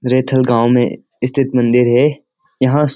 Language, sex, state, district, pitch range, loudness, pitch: Hindi, male, Uttarakhand, Uttarkashi, 125-135 Hz, -14 LUFS, 130 Hz